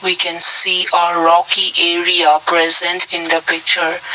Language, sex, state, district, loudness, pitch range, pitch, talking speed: English, male, Assam, Kamrup Metropolitan, -12 LUFS, 170-180 Hz, 170 Hz, 145 wpm